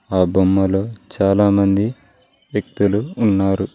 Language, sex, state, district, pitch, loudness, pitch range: Telugu, male, Telangana, Mahabubabad, 100 Hz, -17 LUFS, 95-105 Hz